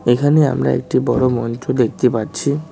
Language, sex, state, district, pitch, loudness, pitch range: Bengali, male, West Bengal, Cooch Behar, 130 Hz, -17 LUFS, 120-145 Hz